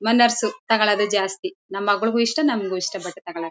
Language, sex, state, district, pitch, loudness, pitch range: Kannada, female, Karnataka, Mysore, 210 Hz, -21 LUFS, 195-230 Hz